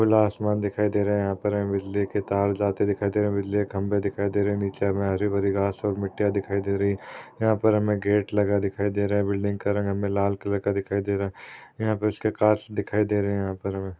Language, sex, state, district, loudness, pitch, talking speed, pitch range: Hindi, male, Maharashtra, Chandrapur, -25 LUFS, 100 Hz, 285 wpm, 100-105 Hz